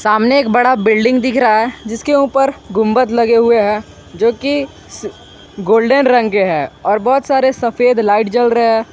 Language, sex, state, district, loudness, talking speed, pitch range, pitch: Hindi, male, Jharkhand, Garhwa, -13 LUFS, 175 wpm, 220-260 Hz, 235 Hz